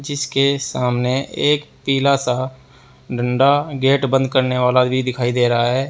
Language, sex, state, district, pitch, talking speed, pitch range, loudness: Hindi, male, Uttar Pradesh, Saharanpur, 130 Hz, 150 wpm, 125-140 Hz, -18 LUFS